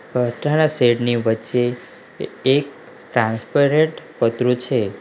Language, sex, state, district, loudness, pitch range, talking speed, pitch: Gujarati, male, Gujarat, Valsad, -19 LUFS, 120-140 Hz, 95 wpm, 125 Hz